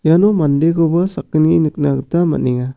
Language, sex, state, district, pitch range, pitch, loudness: Garo, male, Meghalaya, South Garo Hills, 145-170 Hz, 160 Hz, -15 LUFS